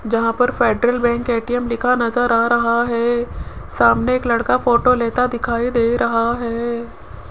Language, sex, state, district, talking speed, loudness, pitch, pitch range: Hindi, female, Rajasthan, Jaipur, 155 wpm, -17 LUFS, 235 Hz, 235-245 Hz